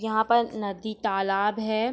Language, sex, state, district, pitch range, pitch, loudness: Hindi, female, Jharkhand, Sahebganj, 205-220 Hz, 220 Hz, -26 LUFS